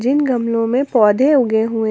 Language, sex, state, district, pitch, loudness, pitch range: Hindi, female, Jharkhand, Ranchi, 230 Hz, -15 LUFS, 225-265 Hz